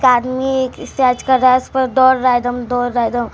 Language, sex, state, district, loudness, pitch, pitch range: Hindi, female, Bihar, Araria, -15 LUFS, 255 Hz, 245-260 Hz